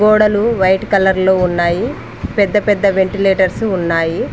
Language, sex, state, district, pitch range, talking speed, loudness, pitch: Telugu, female, Telangana, Mahabubabad, 185-205 Hz, 125 wpm, -14 LUFS, 190 Hz